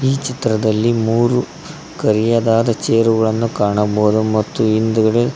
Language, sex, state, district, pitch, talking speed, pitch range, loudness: Kannada, male, Karnataka, Koppal, 115 Hz, 90 wpm, 110-120 Hz, -16 LUFS